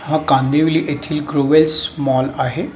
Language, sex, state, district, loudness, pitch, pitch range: Marathi, male, Maharashtra, Mumbai Suburban, -16 LUFS, 150 Hz, 140-155 Hz